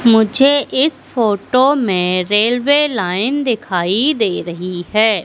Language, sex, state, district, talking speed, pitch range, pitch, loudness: Hindi, female, Madhya Pradesh, Katni, 115 wpm, 190-270 Hz, 225 Hz, -15 LUFS